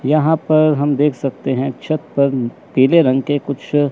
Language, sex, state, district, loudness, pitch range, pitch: Hindi, male, Chandigarh, Chandigarh, -16 LUFS, 135-155 Hz, 145 Hz